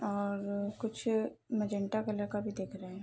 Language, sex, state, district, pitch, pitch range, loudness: Hindi, female, Bihar, Sitamarhi, 205 Hz, 200-215 Hz, -36 LUFS